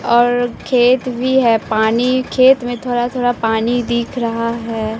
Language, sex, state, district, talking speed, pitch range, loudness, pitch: Hindi, female, Bihar, Katihar, 155 wpm, 230-250 Hz, -15 LUFS, 240 Hz